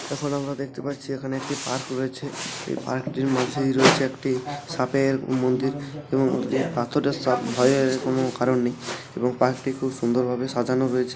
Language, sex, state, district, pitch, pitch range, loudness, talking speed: Bengali, male, West Bengal, Paschim Medinipur, 130 Hz, 125-135 Hz, -24 LUFS, 160 wpm